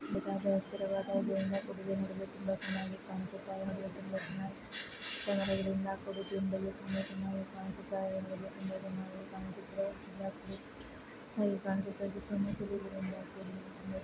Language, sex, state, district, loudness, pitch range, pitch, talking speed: Kannada, female, Karnataka, Belgaum, -38 LUFS, 190-195 Hz, 195 Hz, 85 wpm